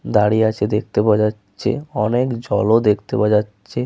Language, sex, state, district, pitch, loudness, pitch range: Bengali, male, West Bengal, Paschim Medinipur, 105 Hz, -18 LUFS, 105-120 Hz